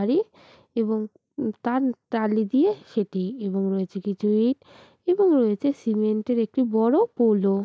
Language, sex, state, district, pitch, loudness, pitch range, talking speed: Bengali, female, West Bengal, Purulia, 225 Hz, -24 LUFS, 210-260 Hz, 155 wpm